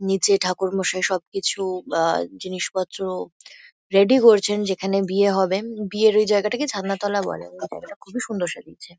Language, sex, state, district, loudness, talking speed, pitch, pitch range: Bengali, female, West Bengal, Kolkata, -21 LUFS, 120 wpm, 195 Hz, 190-210 Hz